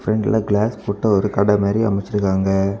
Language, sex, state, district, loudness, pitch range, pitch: Tamil, male, Tamil Nadu, Kanyakumari, -18 LUFS, 100-110 Hz, 105 Hz